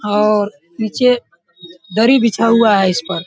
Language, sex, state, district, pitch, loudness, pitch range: Hindi, male, Bihar, Sitamarhi, 215 Hz, -14 LUFS, 190-235 Hz